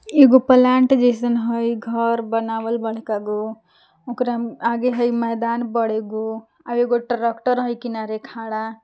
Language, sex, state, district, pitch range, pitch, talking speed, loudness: Magahi, female, Jharkhand, Palamu, 225-240 Hz, 235 Hz, 120 wpm, -20 LUFS